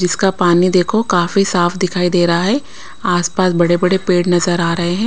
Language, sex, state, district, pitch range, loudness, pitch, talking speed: Hindi, female, Bihar, West Champaran, 175-185 Hz, -14 LUFS, 180 Hz, 190 wpm